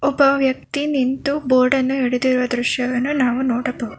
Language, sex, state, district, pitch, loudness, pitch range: Kannada, female, Karnataka, Bangalore, 260 Hz, -19 LUFS, 250-275 Hz